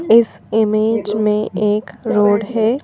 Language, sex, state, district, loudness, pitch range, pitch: Hindi, female, Madhya Pradesh, Bhopal, -16 LUFS, 210-225 Hz, 215 Hz